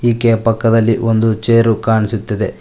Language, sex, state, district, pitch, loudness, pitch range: Kannada, male, Karnataka, Koppal, 115 Hz, -14 LUFS, 110-115 Hz